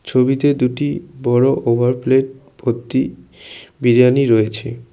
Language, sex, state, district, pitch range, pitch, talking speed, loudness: Bengali, male, West Bengal, Cooch Behar, 120-135 Hz, 125 Hz, 95 wpm, -16 LUFS